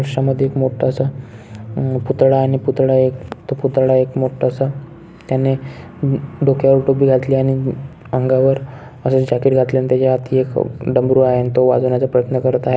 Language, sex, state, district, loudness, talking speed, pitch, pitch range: Marathi, male, Maharashtra, Chandrapur, -16 LUFS, 155 wpm, 130 Hz, 130-135 Hz